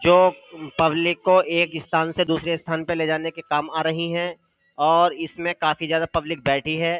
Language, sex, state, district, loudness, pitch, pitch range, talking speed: Hindi, male, Uttar Pradesh, Jyotiba Phule Nagar, -22 LUFS, 165 Hz, 160-170 Hz, 195 wpm